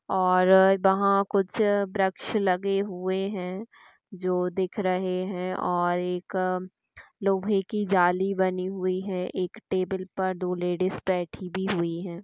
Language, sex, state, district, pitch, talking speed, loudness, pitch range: Hindi, female, Chhattisgarh, Raigarh, 185 Hz, 135 wpm, -26 LUFS, 185-195 Hz